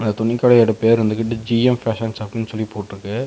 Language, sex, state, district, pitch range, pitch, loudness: Tamil, male, Tamil Nadu, Namakkal, 110-115 Hz, 115 Hz, -18 LUFS